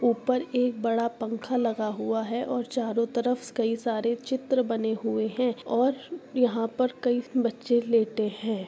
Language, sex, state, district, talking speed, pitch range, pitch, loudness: Hindi, female, Uttar Pradesh, Jyotiba Phule Nagar, 160 wpm, 225-250 Hz, 235 Hz, -27 LUFS